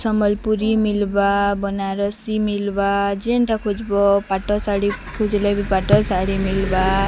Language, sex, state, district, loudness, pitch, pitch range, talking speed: Odia, female, Odisha, Sambalpur, -19 LUFS, 200 Hz, 200-210 Hz, 110 wpm